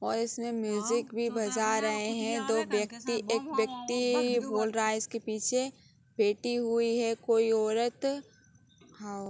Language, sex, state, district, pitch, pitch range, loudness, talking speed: Hindi, female, Uttar Pradesh, Gorakhpur, 230 Hz, 220-235 Hz, -30 LUFS, 150 wpm